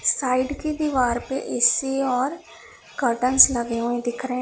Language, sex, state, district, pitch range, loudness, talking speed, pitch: Hindi, female, Punjab, Pathankot, 240-270 Hz, -21 LUFS, 165 wpm, 255 Hz